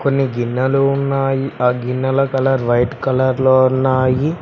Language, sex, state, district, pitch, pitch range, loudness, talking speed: Telugu, male, Telangana, Mahabubabad, 130 Hz, 130-135 Hz, -16 LUFS, 135 wpm